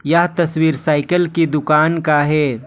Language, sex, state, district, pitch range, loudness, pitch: Hindi, male, Jharkhand, Ranchi, 150-165 Hz, -16 LUFS, 155 Hz